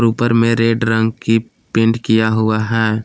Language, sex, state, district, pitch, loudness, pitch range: Hindi, male, Jharkhand, Palamu, 115 Hz, -15 LUFS, 110-115 Hz